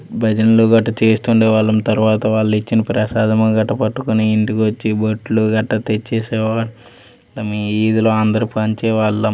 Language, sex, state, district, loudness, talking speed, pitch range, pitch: Telugu, male, Andhra Pradesh, Srikakulam, -16 LUFS, 115 wpm, 110-115 Hz, 110 Hz